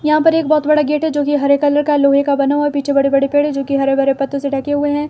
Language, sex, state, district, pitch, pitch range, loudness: Hindi, female, Himachal Pradesh, Shimla, 290 Hz, 275-295 Hz, -15 LUFS